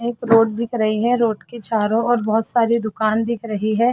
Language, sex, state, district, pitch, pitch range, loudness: Hindi, female, Chhattisgarh, Rajnandgaon, 225 Hz, 220-235 Hz, -19 LUFS